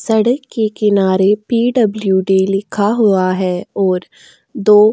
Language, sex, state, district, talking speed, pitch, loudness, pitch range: Hindi, female, Goa, North and South Goa, 120 wpm, 205 Hz, -14 LUFS, 190-220 Hz